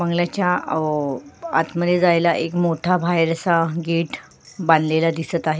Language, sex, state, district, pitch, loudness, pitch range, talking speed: Marathi, female, Maharashtra, Sindhudurg, 165 Hz, -20 LUFS, 160-175 Hz, 130 wpm